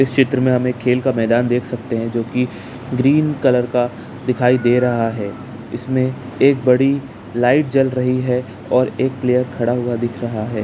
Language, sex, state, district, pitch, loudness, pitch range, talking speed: Hindi, male, Bihar, Jamui, 125 Hz, -18 LUFS, 120-130 Hz, 185 wpm